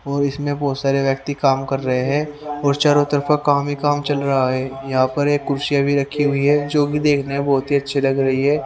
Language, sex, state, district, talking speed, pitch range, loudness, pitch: Hindi, male, Haryana, Rohtak, 250 wpm, 135-145 Hz, -19 LUFS, 140 Hz